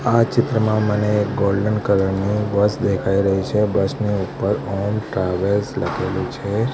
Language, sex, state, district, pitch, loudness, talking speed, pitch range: Gujarati, male, Gujarat, Gandhinagar, 105 Hz, -20 LUFS, 150 wpm, 100-110 Hz